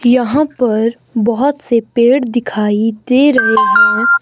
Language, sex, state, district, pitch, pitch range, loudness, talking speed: Hindi, male, Himachal Pradesh, Shimla, 245 Hz, 230-275 Hz, -12 LUFS, 130 wpm